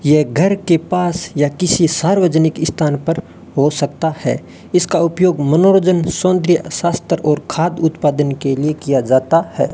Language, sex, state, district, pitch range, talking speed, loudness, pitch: Hindi, male, Rajasthan, Bikaner, 150-180 Hz, 155 wpm, -15 LUFS, 165 Hz